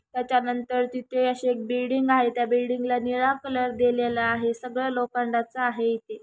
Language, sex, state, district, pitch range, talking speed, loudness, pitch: Marathi, female, Maharashtra, Chandrapur, 240-255 Hz, 165 wpm, -25 LUFS, 245 Hz